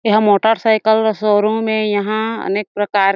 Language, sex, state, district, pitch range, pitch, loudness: Chhattisgarhi, female, Chhattisgarh, Jashpur, 205-220 Hz, 215 Hz, -16 LUFS